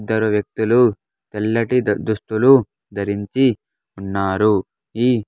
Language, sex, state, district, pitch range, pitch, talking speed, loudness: Telugu, male, Andhra Pradesh, Sri Satya Sai, 100-115 Hz, 110 Hz, 80 wpm, -18 LUFS